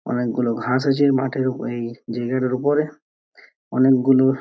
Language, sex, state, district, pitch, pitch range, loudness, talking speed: Bengali, male, West Bengal, Purulia, 130 Hz, 120-135 Hz, -20 LUFS, 165 wpm